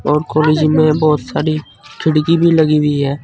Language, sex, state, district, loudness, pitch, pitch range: Hindi, male, Uttar Pradesh, Saharanpur, -14 LUFS, 155 Hz, 150-155 Hz